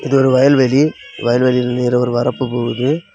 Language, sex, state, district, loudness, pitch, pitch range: Tamil, male, Tamil Nadu, Kanyakumari, -15 LUFS, 130 Hz, 125-140 Hz